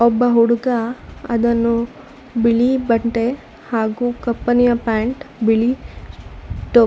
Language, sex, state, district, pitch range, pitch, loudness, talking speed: Kannada, female, Karnataka, Shimoga, 230-245 Hz, 235 Hz, -18 LUFS, 85 wpm